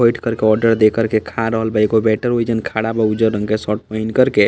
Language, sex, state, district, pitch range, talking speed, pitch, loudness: Bhojpuri, male, Bihar, East Champaran, 110-115 Hz, 295 wpm, 110 Hz, -17 LUFS